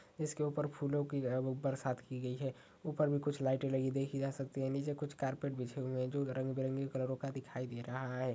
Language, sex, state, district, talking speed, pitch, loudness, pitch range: Hindi, male, Uttar Pradesh, Ghazipur, 235 wpm, 135 Hz, -39 LUFS, 130-140 Hz